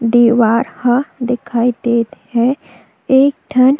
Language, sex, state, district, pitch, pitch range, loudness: Chhattisgarhi, female, Chhattisgarh, Jashpur, 245 Hz, 235-265 Hz, -14 LUFS